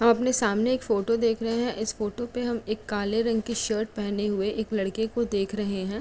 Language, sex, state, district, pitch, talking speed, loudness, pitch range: Hindi, female, Uttar Pradesh, Etah, 220 Hz, 250 wpm, -27 LUFS, 210-235 Hz